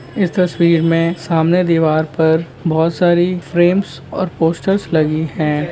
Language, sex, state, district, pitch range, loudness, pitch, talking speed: Hindi, male, Maharashtra, Nagpur, 160-180 Hz, -15 LUFS, 170 Hz, 135 wpm